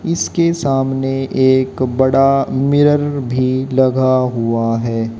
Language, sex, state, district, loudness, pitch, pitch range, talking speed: Hindi, male, Haryana, Jhajjar, -15 LUFS, 130 Hz, 130-135 Hz, 105 wpm